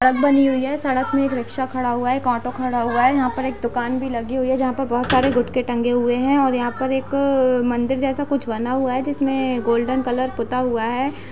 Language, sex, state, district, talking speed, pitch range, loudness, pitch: Hindi, female, Uttar Pradesh, Budaun, 250 wpm, 245-265 Hz, -20 LUFS, 255 Hz